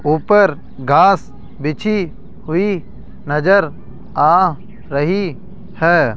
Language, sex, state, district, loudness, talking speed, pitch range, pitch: Hindi, male, Rajasthan, Jaipur, -16 LUFS, 80 wpm, 150-200 Hz, 170 Hz